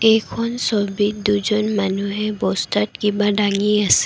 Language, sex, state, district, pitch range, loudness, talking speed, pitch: Assamese, female, Assam, Kamrup Metropolitan, 200-215 Hz, -19 LUFS, 120 wpm, 210 Hz